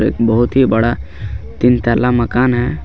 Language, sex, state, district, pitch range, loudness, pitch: Hindi, male, Jharkhand, Garhwa, 115-125 Hz, -14 LUFS, 120 Hz